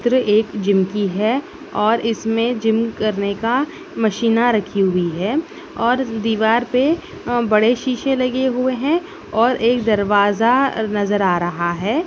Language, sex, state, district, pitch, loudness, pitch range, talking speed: Hindi, female, Bihar, Darbhanga, 230 Hz, -18 LUFS, 210-255 Hz, 150 wpm